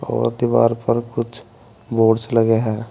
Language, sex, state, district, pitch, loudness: Hindi, male, Uttar Pradesh, Saharanpur, 115 Hz, -18 LUFS